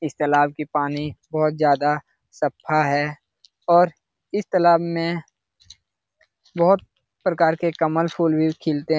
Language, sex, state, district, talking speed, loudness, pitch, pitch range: Hindi, male, Bihar, Lakhisarai, 135 wpm, -21 LUFS, 155 Hz, 145-170 Hz